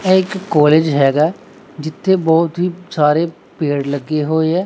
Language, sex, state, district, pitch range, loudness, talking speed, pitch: Punjabi, male, Punjab, Pathankot, 150-180 Hz, -15 LUFS, 155 wpm, 160 Hz